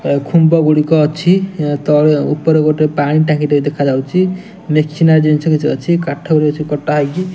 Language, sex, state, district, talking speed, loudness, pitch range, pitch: Odia, male, Odisha, Nuapada, 180 wpm, -13 LUFS, 150-165 Hz, 155 Hz